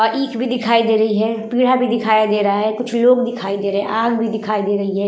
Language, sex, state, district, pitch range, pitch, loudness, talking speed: Hindi, female, Uttar Pradesh, Budaun, 210-240 Hz, 225 Hz, -17 LUFS, 295 wpm